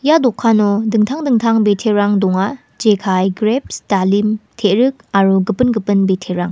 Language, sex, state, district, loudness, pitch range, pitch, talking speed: Garo, female, Meghalaya, West Garo Hills, -15 LUFS, 195-230 Hz, 210 Hz, 130 wpm